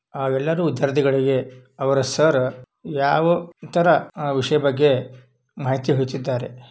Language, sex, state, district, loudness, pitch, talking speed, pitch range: Kannada, male, Karnataka, Belgaum, -21 LUFS, 135 Hz, 125 wpm, 130-150 Hz